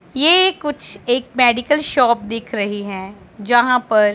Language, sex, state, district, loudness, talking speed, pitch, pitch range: Hindi, female, Punjab, Pathankot, -16 LUFS, 145 wpm, 240 Hz, 210-265 Hz